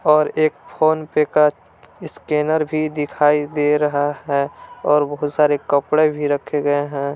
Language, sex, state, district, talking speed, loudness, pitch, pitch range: Hindi, male, Jharkhand, Palamu, 150 wpm, -18 LUFS, 150 Hz, 145-155 Hz